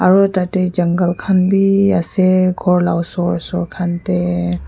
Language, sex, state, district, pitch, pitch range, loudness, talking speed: Nagamese, female, Nagaland, Kohima, 180 Hz, 170-185 Hz, -15 LUFS, 155 wpm